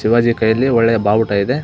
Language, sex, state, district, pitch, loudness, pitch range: Kannada, male, Karnataka, Belgaum, 115 Hz, -14 LUFS, 110-120 Hz